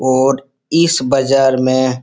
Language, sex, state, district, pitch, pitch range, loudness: Hindi, male, Bihar, Supaul, 135 Hz, 130-135 Hz, -14 LUFS